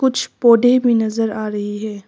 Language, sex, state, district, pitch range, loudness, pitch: Hindi, female, Arunachal Pradesh, Papum Pare, 215-245 Hz, -16 LUFS, 225 Hz